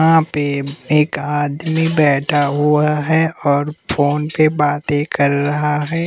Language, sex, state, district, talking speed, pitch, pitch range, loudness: Hindi, male, Bihar, West Champaran, 140 wpm, 150 Hz, 145-155 Hz, -16 LUFS